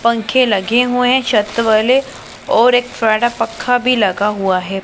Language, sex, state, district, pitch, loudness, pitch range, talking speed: Hindi, female, Punjab, Pathankot, 235 Hz, -14 LUFS, 210-250 Hz, 160 wpm